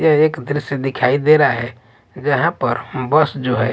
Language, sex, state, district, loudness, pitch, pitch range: Hindi, male, Maharashtra, Washim, -17 LUFS, 135 Hz, 125-150 Hz